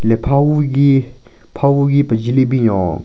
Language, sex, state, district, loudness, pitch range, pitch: Rengma, male, Nagaland, Kohima, -14 LUFS, 115-140 Hz, 130 Hz